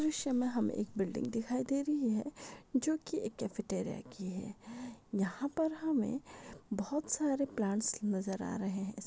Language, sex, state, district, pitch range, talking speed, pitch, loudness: Hindi, female, Maharashtra, Pune, 205-275 Hz, 180 wpm, 235 Hz, -36 LUFS